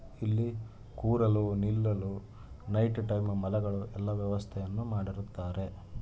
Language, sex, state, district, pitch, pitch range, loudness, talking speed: Kannada, male, Karnataka, Dharwad, 105 Hz, 100-110 Hz, -33 LUFS, 90 wpm